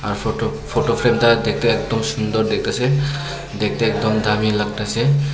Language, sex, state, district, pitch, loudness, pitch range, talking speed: Bengali, male, Tripura, Unakoti, 115 Hz, -19 LUFS, 110-140 Hz, 125 wpm